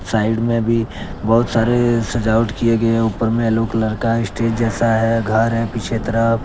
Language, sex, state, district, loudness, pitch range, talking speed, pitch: Hindi, male, Jharkhand, Deoghar, -17 LUFS, 110-115 Hz, 195 wpm, 115 Hz